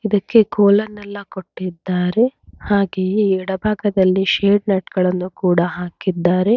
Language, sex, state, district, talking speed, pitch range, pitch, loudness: Kannada, female, Karnataka, Bangalore, 110 wpm, 185-205 Hz, 195 Hz, -18 LUFS